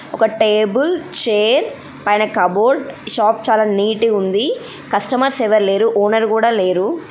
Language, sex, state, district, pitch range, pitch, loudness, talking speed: Telugu, female, Andhra Pradesh, Guntur, 210-250 Hz, 220 Hz, -16 LUFS, 125 wpm